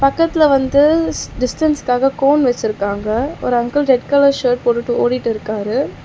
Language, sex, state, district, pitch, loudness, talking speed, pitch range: Tamil, female, Tamil Nadu, Chennai, 255 Hz, -16 LUFS, 130 wpm, 240-285 Hz